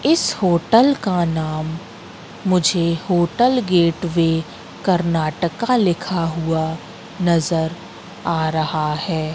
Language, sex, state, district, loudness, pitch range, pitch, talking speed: Hindi, female, Madhya Pradesh, Katni, -19 LUFS, 160-185 Hz, 170 Hz, 90 wpm